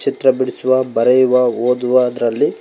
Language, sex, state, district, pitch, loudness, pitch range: Kannada, male, Karnataka, Koppal, 125 Hz, -15 LUFS, 125-130 Hz